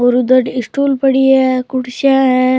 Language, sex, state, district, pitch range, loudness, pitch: Rajasthani, male, Rajasthan, Churu, 250-270 Hz, -13 LUFS, 255 Hz